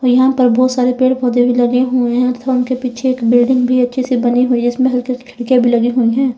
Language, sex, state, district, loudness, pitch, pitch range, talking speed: Hindi, female, Uttar Pradesh, Lalitpur, -14 LUFS, 250 Hz, 245-255 Hz, 235 wpm